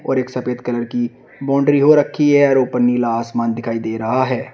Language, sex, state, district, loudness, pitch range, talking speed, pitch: Hindi, male, Uttar Pradesh, Shamli, -17 LUFS, 120-135 Hz, 225 wpm, 125 Hz